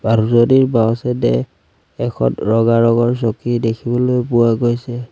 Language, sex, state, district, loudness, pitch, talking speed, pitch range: Assamese, male, Assam, Sonitpur, -15 LUFS, 120 Hz, 115 wpm, 115-120 Hz